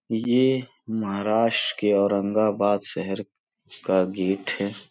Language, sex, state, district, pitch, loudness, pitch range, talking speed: Hindi, male, Uttar Pradesh, Gorakhpur, 105 Hz, -24 LUFS, 100-110 Hz, 100 wpm